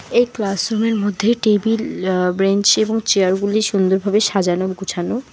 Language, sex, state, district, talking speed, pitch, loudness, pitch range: Bengali, female, West Bengal, Alipurduar, 155 wpm, 200 Hz, -17 LUFS, 190-220 Hz